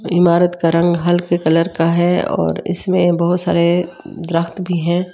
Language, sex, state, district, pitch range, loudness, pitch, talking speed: Hindi, female, Delhi, New Delhi, 170-180 Hz, -16 LUFS, 175 Hz, 150 wpm